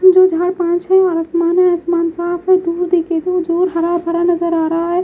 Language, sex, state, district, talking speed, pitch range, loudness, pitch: Hindi, female, Haryana, Jhajjar, 240 wpm, 340-360 Hz, -15 LUFS, 345 Hz